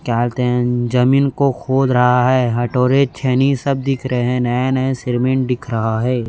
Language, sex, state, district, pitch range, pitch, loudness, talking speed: Hindi, male, Chhattisgarh, Raipur, 125-130 Hz, 125 Hz, -16 LUFS, 160 wpm